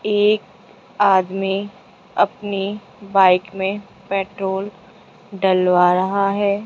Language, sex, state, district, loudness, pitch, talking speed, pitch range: Hindi, female, Rajasthan, Jaipur, -19 LUFS, 195 Hz, 80 wpm, 190-205 Hz